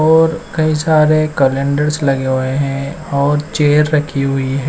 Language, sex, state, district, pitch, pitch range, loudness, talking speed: Hindi, male, Himachal Pradesh, Shimla, 150 Hz, 135-155 Hz, -15 LUFS, 140 wpm